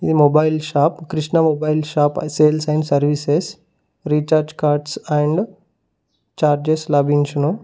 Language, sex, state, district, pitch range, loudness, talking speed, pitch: Telugu, male, Telangana, Mahabubabad, 145-155 Hz, -18 LUFS, 110 wpm, 150 Hz